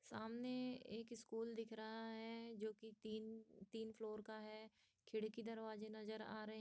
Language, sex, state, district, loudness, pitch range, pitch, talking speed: Hindi, female, Jharkhand, Sahebganj, -51 LUFS, 220-225 Hz, 220 Hz, 170 wpm